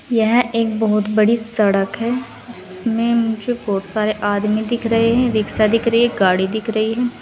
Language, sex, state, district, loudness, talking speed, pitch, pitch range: Hindi, female, Uttar Pradesh, Saharanpur, -18 LUFS, 185 wpm, 225 Hz, 210-235 Hz